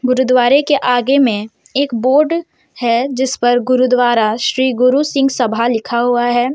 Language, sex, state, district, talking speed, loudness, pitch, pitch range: Hindi, female, Jharkhand, Deoghar, 155 wpm, -14 LUFS, 255 Hz, 240-270 Hz